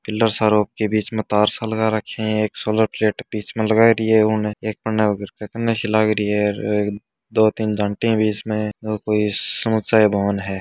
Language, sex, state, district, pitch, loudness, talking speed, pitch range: Hindi, male, Rajasthan, Churu, 110 Hz, -19 LUFS, 135 wpm, 105-110 Hz